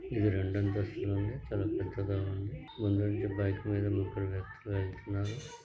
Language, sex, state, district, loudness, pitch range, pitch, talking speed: Telugu, female, Andhra Pradesh, Krishna, -34 LUFS, 100-105 Hz, 100 Hz, 85 wpm